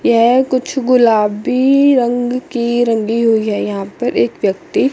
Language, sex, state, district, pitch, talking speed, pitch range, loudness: Hindi, female, Chandigarh, Chandigarh, 235 Hz, 145 wpm, 215-255 Hz, -14 LUFS